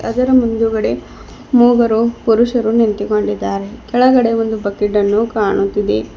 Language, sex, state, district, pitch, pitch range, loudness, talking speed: Kannada, female, Karnataka, Bidar, 220 Hz, 205-235 Hz, -14 LUFS, 95 wpm